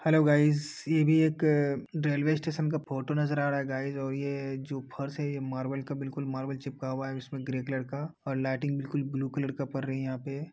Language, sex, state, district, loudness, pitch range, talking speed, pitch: Hindi, male, Uttar Pradesh, Hamirpur, -31 LUFS, 135-150 Hz, 250 wpm, 140 Hz